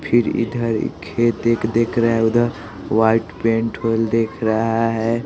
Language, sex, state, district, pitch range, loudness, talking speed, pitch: Hindi, male, Bihar, West Champaran, 110-115 Hz, -19 LUFS, 160 wpm, 115 Hz